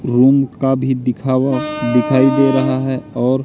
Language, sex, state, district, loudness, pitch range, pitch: Hindi, male, Madhya Pradesh, Katni, -15 LUFS, 125-135 Hz, 130 Hz